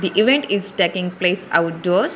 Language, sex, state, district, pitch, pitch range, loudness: English, female, Telangana, Hyderabad, 185 Hz, 180-200 Hz, -18 LUFS